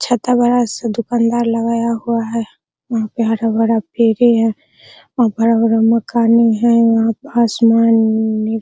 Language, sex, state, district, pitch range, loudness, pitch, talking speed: Hindi, female, Bihar, Araria, 225-235 Hz, -15 LUFS, 230 Hz, 130 wpm